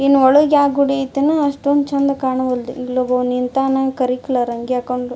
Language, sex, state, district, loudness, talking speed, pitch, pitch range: Kannada, female, Karnataka, Dharwad, -17 LUFS, 165 wpm, 265 Hz, 250-280 Hz